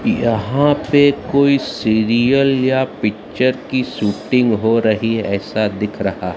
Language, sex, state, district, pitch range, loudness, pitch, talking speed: Hindi, male, Maharashtra, Mumbai Suburban, 105-130 Hz, -16 LUFS, 115 Hz, 130 wpm